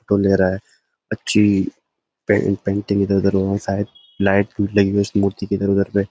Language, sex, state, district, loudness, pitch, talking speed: Hindi, male, Uttarakhand, Uttarkashi, -19 LUFS, 100 Hz, 145 wpm